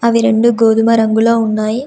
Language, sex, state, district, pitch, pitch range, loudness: Telugu, female, Telangana, Komaram Bheem, 225 Hz, 220-230 Hz, -12 LUFS